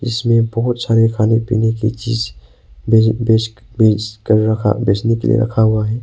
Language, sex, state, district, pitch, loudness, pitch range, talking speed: Hindi, male, Arunachal Pradesh, Papum Pare, 110 Hz, -15 LUFS, 110-115 Hz, 140 wpm